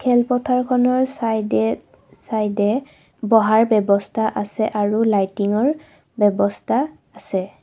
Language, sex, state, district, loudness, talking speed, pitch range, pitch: Assamese, female, Assam, Kamrup Metropolitan, -19 LUFS, 80 wpm, 205-245 Hz, 220 Hz